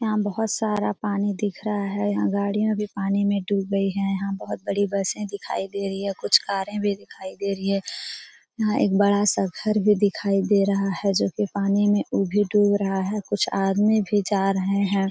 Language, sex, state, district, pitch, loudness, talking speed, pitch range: Hindi, female, Bihar, Jamui, 200 Hz, -23 LUFS, 220 wpm, 195-205 Hz